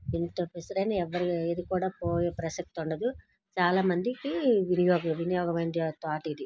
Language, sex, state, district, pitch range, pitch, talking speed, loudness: Telugu, female, Andhra Pradesh, Srikakulam, 165-185 Hz, 175 Hz, 110 wpm, -29 LUFS